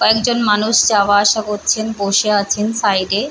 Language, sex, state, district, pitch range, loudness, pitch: Bengali, female, West Bengal, Paschim Medinipur, 205-220 Hz, -15 LUFS, 210 Hz